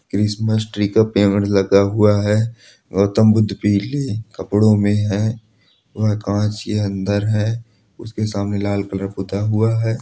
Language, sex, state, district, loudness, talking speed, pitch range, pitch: Hindi, male, Chhattisgarh, Korba, -18 LUFS, 150 wpm, 100-110 Hz, 105 Hz